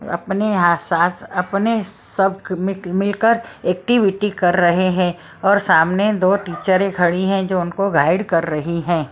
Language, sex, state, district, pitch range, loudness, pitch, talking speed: Hindi, female, Maharashtra, Mumbai Suburban, 175-200 Hz, -18 LUFS, 185 Hz, 145 wpm